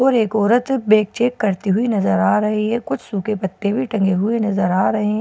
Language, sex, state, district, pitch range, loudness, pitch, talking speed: Hindi, female, Bihar, Katihar, 200-230 Hz, -18 LUFS, 215 Hz, 240 wpm